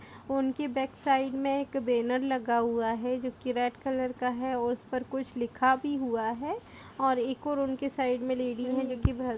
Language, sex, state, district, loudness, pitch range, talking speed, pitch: Hindi, female, Bihar, Lakhisarai, -30 LUFS, 245-270 Hz, 225 wpm, 255 Hz